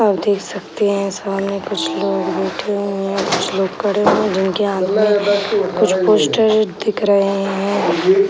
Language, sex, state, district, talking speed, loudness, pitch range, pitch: Hindi, female, Uttar Pradesh, Gorakhpur, 165 wpm, -17 LUFS, 195-210 Hz, 200 Hz